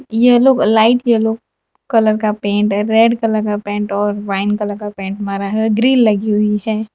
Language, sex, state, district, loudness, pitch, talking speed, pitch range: Hindi, female, Gujarat, Valsad, -15 LUFS, 215 Hz, 190 wpm, 205-225 Hz